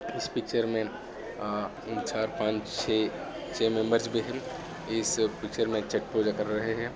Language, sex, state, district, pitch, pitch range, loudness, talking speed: Hindi, male, Maharashtra, Solapur, 110 Hz, 105-115 Hz, -30 LUFS, 170 wpm